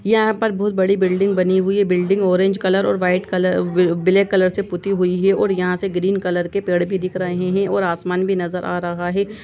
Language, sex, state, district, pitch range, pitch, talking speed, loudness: Hindi, female, Chhattisgarh, Sukma, 180-195 Hz, 185 Hz, 220 wpm, -18 LUFS